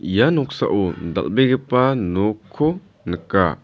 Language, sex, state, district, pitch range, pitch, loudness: Garo, male, Meghalaya, South Garo Hills, 95-130 Hz, 110 Hz, -20 LUFS